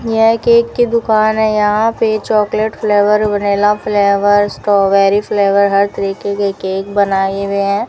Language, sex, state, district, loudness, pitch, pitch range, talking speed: Hindi, female, Rajasthan, Bikaner, -13 LUFS, 205 Hz, 200-215 Hz, 150 wpm